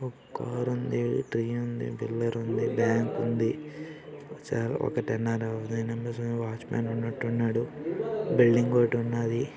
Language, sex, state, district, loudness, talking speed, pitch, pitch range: Telugu, male, Andhra Pradesh, Srikakulam, -29 LUFS, 65 wpm, 115 Hz, 115-125 Hz